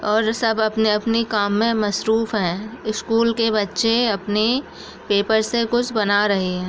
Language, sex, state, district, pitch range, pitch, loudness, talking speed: Hindi, female, Bihar, Bhagalpur, 210-230 Hz, 220 Hz, -20 LUFS, 170 wpm